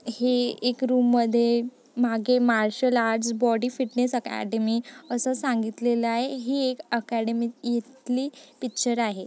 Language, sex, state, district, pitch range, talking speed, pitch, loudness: Marathi, female, Maharashtra, Nagpur, 235-255 Hz, 115 wpm, 245 Hz, -25 LUFS